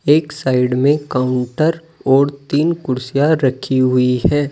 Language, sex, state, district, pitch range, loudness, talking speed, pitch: Hindi, male, Uttar Pradesh, Saharanpur, 130-150 Hz, -16 LUFS, 130 wpm, 140 Hz